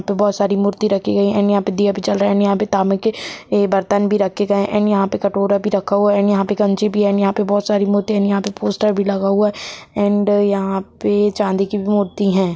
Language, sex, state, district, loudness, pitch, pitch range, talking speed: Hindi, female, Bihar, Gopalganj, -17 LUFS, 200 Hz, 200-205 Hz, 300 wpm